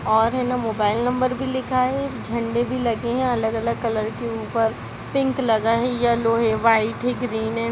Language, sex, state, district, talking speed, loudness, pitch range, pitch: Hindi, female, Chhattisgarh, Kabirdham, 195 wpm, -21 LUFS, 225-250 Hz, 235 Hz